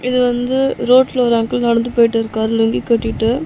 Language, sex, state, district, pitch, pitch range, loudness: Tamil, female, Tamil Nadu, Chennai, 240 Hz, 225-250 Hz, -15 LUFS